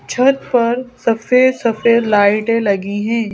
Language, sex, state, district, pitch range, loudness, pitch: Hindi, female, Madhya Pradesh, Bhopal, 215-250 Hz, -15 LUFS, 230 Hz